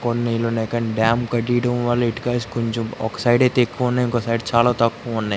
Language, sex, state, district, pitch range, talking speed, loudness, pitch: Telugu, female, Andhra Pradesh, Guntur, 115-120 Hz, 200 wpm, -20 LUFS, 120 Hz